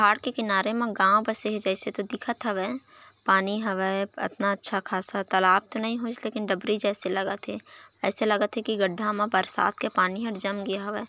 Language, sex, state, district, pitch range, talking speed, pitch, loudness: Chhattisgarhi, female, Chhattisgarh, Raigarh, 195-220 Hz, 205 wpm, 205 Hz, -26 LUFS